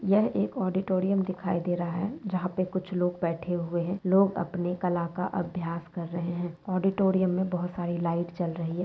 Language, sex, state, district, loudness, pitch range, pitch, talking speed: Hindi, female, West Bengal, Jalpaiguri, -29 LUFS, 175-190 Hz, 180 Hz, 205 wpm